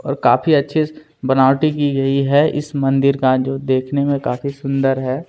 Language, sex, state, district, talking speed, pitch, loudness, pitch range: Hindi, male, Chhattisgarh, Kabirdham, 205 wpm, 140 Hz, -17 LUFS, 135-145 Hz